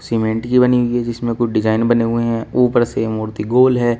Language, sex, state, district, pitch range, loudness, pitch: Hindi, male, Uttar Pradesh, Shamli, 115-120 Hz, -16 LUFS, 120 Hz